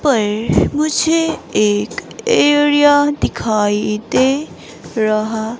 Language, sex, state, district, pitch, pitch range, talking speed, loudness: Hindi, female, Himachal Pradesh, Shimla, 235 Hz, 215-290 Hz, 75 wpm, -15 LUFS